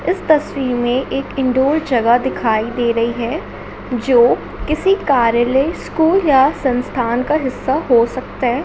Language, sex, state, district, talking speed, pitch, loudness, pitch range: Hindi, female, Chhattisgarh, Raipur, 145 wpm, 255 Hz, -16 LUFS, 240-285 Hz